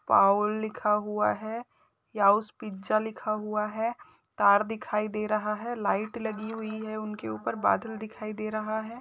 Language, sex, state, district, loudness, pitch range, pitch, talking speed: Hindi, female, Uttar Pradesh, Gorakhpur, -29 LUFS, 210-220 Hz, 215 Hz, 160 wpm